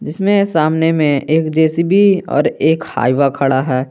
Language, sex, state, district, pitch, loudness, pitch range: Hindi, male, Jharkhand, Garhwa, 155 Hz, -14 LUFS, 140-170 Hz